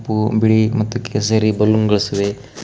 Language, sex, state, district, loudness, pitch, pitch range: Kannada, male, Karnataka, Koppal, -16 LUFS, 110 Hz, 105-110 Hz